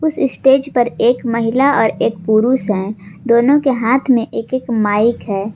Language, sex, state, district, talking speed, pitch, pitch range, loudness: Hindi, female, Jharkhand, Garhwa, 185 wpm, 240 Hz, 220-260 Hz, -15 LUFS